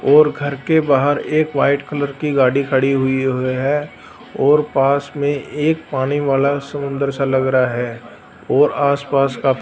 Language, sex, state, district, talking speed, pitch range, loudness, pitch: Hindi, male, Punjab, Fazilka, 170 wpm, 135-145 Hz, -17 LUFS, 140 Hz